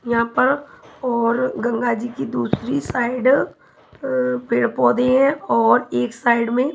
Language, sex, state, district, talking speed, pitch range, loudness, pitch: Hindi, female, Himachal Pradesh, Shimla, 115 wpm, 230-255 Hz, -19 LUFS, 240 Hz